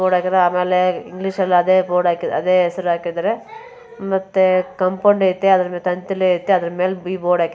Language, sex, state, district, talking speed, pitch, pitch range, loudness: Kannada, male, Karnataka, Bijapur, 150 wpm, 185 Hz, 180-190 Hz, -18 LUFS